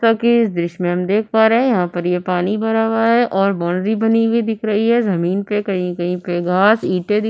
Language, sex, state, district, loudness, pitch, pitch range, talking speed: Hindi, female, Uttar Pradesh, Budaun, -17 LUFS, 210 Hz, 180-225 Hz, 270 wpm